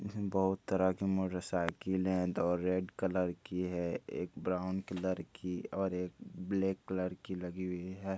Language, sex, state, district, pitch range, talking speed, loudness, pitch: Hindi, male, Bihar, Bhagalpur, 90-95 Hz, 160 wpm, -36 LUFS, 95 Hz